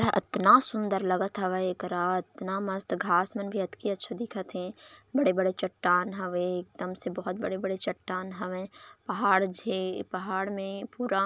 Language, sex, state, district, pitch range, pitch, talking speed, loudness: Chhattisgarhi, female, Chhattisgarh, Raigarh, 185-200 Hz, 190 Hz, 165 wpm, -29 LUFS